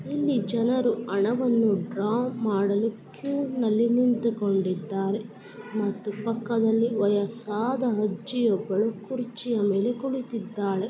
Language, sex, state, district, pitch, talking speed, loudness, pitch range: Kannada, female, Karnataka, Gulbarga, 225 Hz, 65 wpm, -26 LUFS, 205-240 Hz